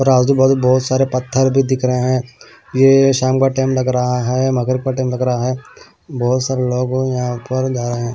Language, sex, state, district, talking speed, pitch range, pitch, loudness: Hindi, male, Punjab, Pathankot, 205 wpm, 125-130 Hz, 130 Hz, -16 LUFS